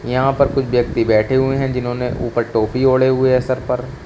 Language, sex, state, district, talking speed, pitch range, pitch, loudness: Hindi, male, Uttar Pradesh, Shamli, 220 wpm, 120-130 Hz, 130 Hz, -17 LUFS